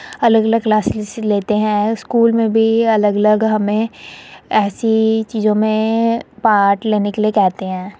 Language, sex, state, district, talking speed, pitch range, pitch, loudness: Hindi, female, Uttar Pradesh, Muzaffarnagar, 135 wpm, 210-225 Hz, 215 Hz, -15 LUFS